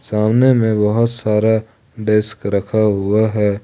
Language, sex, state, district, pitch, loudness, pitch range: Hindi, male, Jharkhand, Ranchi, 110 Hz, -16 LUFS, 105-110 Hz